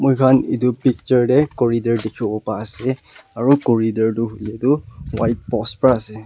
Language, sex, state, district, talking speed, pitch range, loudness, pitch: Nagamese, male, Nagaland, Kohima, 155 wpm, 110-130 Hz, -18 LUFS, 115 Hz